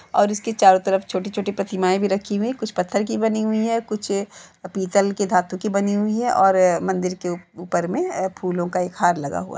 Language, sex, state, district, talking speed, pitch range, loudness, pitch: Hindi, female, Uttar Pradesh, Jalaun, 230 wpm, 185-215 Hz, -21 LUFS, 200 Hz